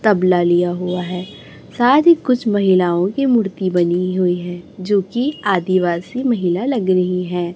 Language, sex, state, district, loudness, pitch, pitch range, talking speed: Hindi, male, Chhattisgarh, Raipur, -17 LUFS, 185 Hz, 180-225 Hz, 160 wpm